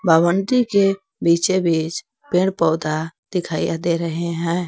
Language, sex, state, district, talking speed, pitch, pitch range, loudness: Hindi, female, Jharkhand, Garhwa, 130 wpm, 170 Hz, 165-190 Hz, -20 LUFS